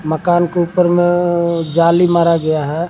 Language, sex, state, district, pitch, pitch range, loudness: Hindi, male, Jharkhand, Garhwa, 170 Hz, 165-175 Hz, -14 LUFS